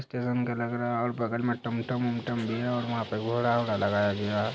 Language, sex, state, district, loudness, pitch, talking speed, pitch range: Hindi, male, Bihar, Saharsa, -29 LUFS, 120 Hz, 250 wpm, 115-120 Hz